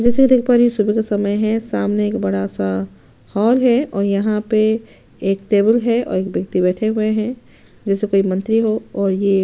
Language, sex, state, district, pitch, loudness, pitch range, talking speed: Hindi, female, Chhattisgarh, Sukma, 210 Hz, -17 LUFS, 195-225 Hz, 230 wpm